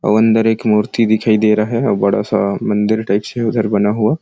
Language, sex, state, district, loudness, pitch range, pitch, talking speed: Hindi, male, Chhattisgarh, Sarguja, -15 LUFS, 105-110 Hz, 110 Hz, 255 wpm